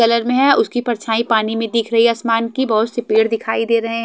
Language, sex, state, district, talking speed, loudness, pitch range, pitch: Hindi, female, Haryana, Jhajjar, 265 wpm, -16 LUFS, 225-235 Hz, 230 Hz